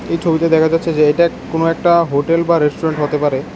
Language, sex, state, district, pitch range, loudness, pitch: Bengali, male, Tripura, West Tripura, 150-170 Hz, -15 LUFS, 165 Hz